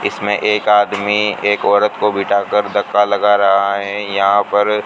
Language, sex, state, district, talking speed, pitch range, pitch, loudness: Hindi, male, Rajasthan, Bikaner, 160 wpm, 100-105 Hz, 105 Hz, -15 LUFS